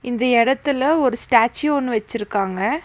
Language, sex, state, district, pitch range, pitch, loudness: Tamil, female, Tamil Nadu, Nilgiris, 225-280 Hz, 245 Hz, -18 LUFS